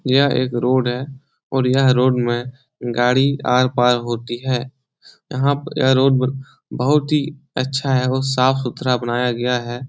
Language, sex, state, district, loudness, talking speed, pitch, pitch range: Hindi, male, Bihar, Supaul, -18 LUFS, 160 wpm, 130 Hz, 125-135 Hz